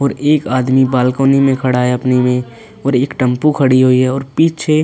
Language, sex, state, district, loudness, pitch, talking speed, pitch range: Hindi, male, Uttar Pradesh, Budaun, -13 LUFS, 130 Hz, 225 wpm, 125-140 Hz